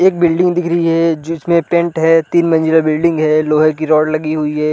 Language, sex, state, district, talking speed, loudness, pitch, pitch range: Hindi, male, Chhattisgarh, Balrampur, 240 wpm, -13 LUFS, 160 Hz, 155-170 Hz